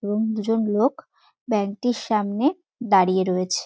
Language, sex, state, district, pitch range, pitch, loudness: Bengali, female, West Bengal, North 24 Parganas, 200-245 Hz, 215 Hz, -22 LUFS